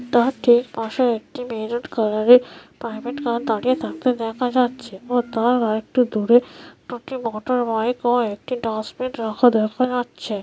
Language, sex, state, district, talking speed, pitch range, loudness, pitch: Bengali, female, West Bengal, North 24 Parganas, 140 wpm, 225-250 Hz, -20 LUFS, 240 Hz